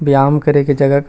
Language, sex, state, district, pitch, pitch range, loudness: Chhattisgarhi, male, Chhattisgarh, Rajnandgaon, 140 Hz, 140-145 Hz, -13 LUFS